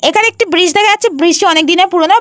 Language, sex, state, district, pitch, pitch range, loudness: Bengali, female, Jharkhand, Jamtara, 375 Hz, 340-420 Hz, -9 LUFS